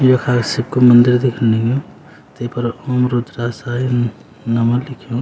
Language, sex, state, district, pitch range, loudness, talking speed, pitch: Garhwali, male, Uttarakhand, Uttarkashi, 120-125 Hz, -16 LUFS, 140 wpm, 120 Hz